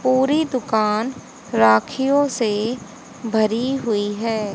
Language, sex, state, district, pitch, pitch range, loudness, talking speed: Hindi, female, Haryana, Charkhi Dadri, 230 Hz, 215-255 Hz, -20 LUFS, 90 wpm